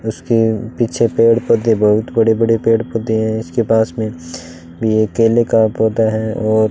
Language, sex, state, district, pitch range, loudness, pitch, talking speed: Hindi, male, Rajasthan, Bikaner, 110-115 Hz, -15 LUFS, 110 Hz, 180 wpm